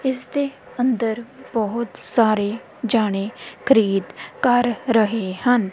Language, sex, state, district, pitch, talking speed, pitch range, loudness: Punjabi, female, Punjab, Kapurthala, 235 Hz, 105 wpm, 215-255 Hz, -21 LUFS